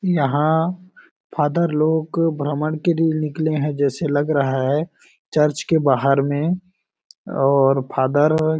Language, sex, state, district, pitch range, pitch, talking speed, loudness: Hindi, male, Chhattisgarh, Balrampur, 145-165 Hz, 155 Hz, 135 wpm, -19 LUFS